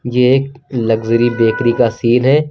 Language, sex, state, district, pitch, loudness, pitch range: Hindi, male, Uttar Pradesh, Lucknow, 120 Hz, -14 LUFS, 115-135 Hz